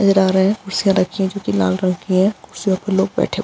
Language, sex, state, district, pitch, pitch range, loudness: Hindi, female, Bihar, Araria, 190 Hz, 185-195 Hz, -18 LUFS